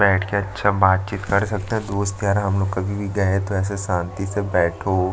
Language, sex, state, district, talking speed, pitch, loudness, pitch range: Hindi, male, Chhattisgarh, Jashpur, 220 wpm, 100 Hz, -21 LUFS, 95-100 Hz